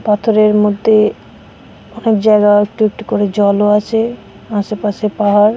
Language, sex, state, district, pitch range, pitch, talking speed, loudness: Bengali, female, West Bengal, Malda, 205-220 Hz, 210 Hz, 120 wpm, -13 LUFS